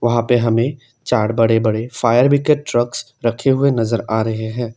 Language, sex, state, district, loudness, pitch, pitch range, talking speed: Hindi, male, Assam, Kamrup Metropolitan, -17 LUFS, 120 Hz, 115-125 Hz, 190 wpm